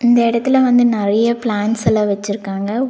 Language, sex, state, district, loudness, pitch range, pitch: Tamil, female, Tamil Nadu, Nilgiris, -16 LUFS, 205-240 Hz, 230 Hz